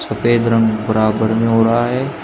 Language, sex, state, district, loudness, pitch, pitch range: Hindi, male, Uttar Pradesh, Shamli, -15 LUFS, 115 Hz, 110-120 Hz